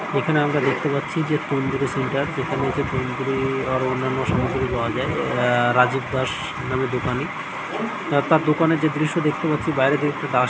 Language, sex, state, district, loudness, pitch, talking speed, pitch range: Bengali, male, West Bengal, Jhargram, -22 LUFS, 140 Hz, 145 wpm, 130-150 Hz